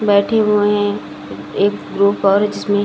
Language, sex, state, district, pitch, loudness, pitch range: Hindi, female, Chhattisgarh, Balrampur, 205 Hz, -16 LUFS, 195-205 Hz